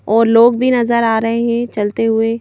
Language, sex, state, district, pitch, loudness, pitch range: Hindi, female, Madhya Pradesh, Bhopal, 230 Hz, -14 LUFS, 225-235 Hz